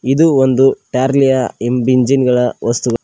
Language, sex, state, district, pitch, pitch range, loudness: Kannada, male, Karnataka, Koppal, 130 Hz, 125-135 Hz, -13 LUFS